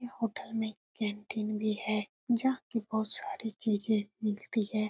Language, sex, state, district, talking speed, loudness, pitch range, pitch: Hindi, female, Uttar Pradesh, Etah, 160 wpm, -34 LUFS, 210-230 Hz, 215 Hz